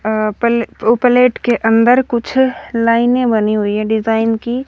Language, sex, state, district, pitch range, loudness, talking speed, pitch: Hindi, female, Haryana, Rohtak, 220-245 Hz, -14 LUFS, 165 wpm, 230 Hz